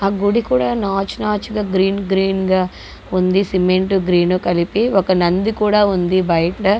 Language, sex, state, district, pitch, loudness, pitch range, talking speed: Telugu, female, Andhra Pradesh, Guntur, 190 Hz, -17 LUFS, 180-200 Hz, 150 wpm